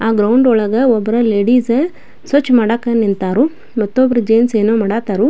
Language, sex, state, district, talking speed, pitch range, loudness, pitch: Kannada, female, Karnataka, Belgaum, 145 wpm, 215-250 Hz, -14 LUFS, 230 Hz